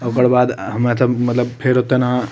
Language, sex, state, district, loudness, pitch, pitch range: Maithili, male, Bihar, Madhepura, -16 LUFS, 125 Hz, 120-125 Hz